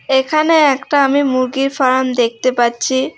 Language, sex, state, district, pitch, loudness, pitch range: Bengali, female, West Bengal, Alipurduar, 265 Hz, -14 LUFS, 255-280 Hz